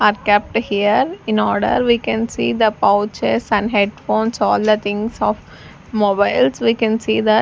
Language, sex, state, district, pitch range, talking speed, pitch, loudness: English, female, Chandigarh, Chandigarh, 205-230 Hz, 180 wpm, 215 Hz, -17 LUFS